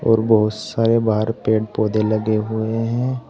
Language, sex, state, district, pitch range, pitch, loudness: Hindi, male, Uttar Pradesh, Saharanpur, 110-115 Hz, 110 Hz, -19 LUFS